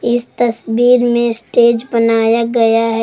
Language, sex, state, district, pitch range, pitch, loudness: Hindi, female, Jharkhand, Garhwa, 230-240 Hz, 235 Hz, -13 LUFS